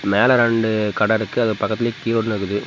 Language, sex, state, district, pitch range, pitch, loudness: Tamil, male, Tamil Nadu, Namakkal, 105-115 Hz, 110 Hz, -19 LUFS